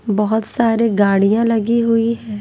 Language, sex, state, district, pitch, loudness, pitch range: Hindi, female, Bihar, Patna, 225 Hz, -16 LUFS, 210-230 Hz